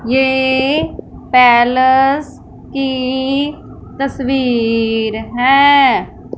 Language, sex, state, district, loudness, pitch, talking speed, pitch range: Hindi, female, Punjab, Fazilka, -13 LUFS, 265 Hz, 45 wpm, 245-275 Hz